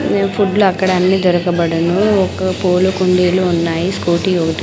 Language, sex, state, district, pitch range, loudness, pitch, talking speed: Telugu, female, Andhra Pradesh, Sri Satya Sai, 175-190 Hz, -14 LUFS, 185 Hz, 130 wpm